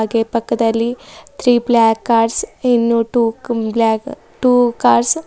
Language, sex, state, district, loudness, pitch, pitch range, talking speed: Kannada, female, Karnataka, Bidar, -15 LUFS, 235 Hz, 225-245 Hz, 125 wpm